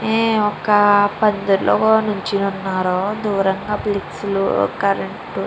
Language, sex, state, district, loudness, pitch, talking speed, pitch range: Telugu, female, Andhra Pradesh, Chittoor, -18 LUFS, 205 Hz, 100 wpm, 195-210 Hz